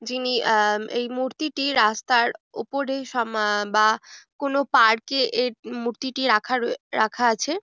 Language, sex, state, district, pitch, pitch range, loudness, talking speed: Bengali, female, West Bengal, Jhargram, 240 Hz, 220-270 Hz, -22 LUFS, 110 wpm